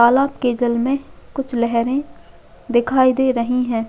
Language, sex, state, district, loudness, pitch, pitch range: Hindi, female, Chhattisgarh, Jashpur, -18 LUFS, 250 Hz, 235-265 Hz